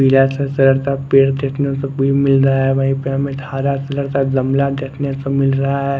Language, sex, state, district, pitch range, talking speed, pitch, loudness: Hindi, male, Chandigarh, Chandigarh, 135-140 Hz, 220 wpm, 135 Hz, -16 LUFS